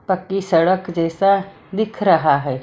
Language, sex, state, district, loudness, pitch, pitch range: Hindi, female, Maharashtra, Mumbai Suburban, -18 LUFS, 190 Hz, 165-195 Hz